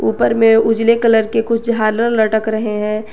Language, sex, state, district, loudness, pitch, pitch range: Hindi, female, Jharkhand, Garhwa, -14 LUFS, 225 Hz, 215-230 Hz